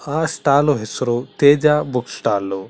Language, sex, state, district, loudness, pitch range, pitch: Kannada, male, Karnataka, Chamarajanagar, -17 LUFS, 120-150 Hz, 140 Hz